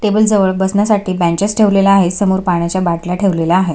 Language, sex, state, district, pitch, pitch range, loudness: Marathi, female, Maharashtra, Sindhudurg, 190 Hz, 180-200 Hz, -13 LUFS